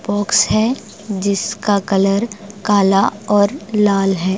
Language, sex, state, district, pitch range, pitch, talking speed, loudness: Hindi, female, Bihar, Patna, 195-210 Hz, 205 Hz, 110 wpm, -16 LUFS